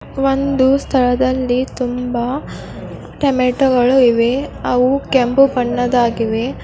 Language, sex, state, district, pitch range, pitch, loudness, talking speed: Kannada, female, Karnataka, Belgaum, 245-270 Hz, 255 Hz, -15 LUFS, 70 wpm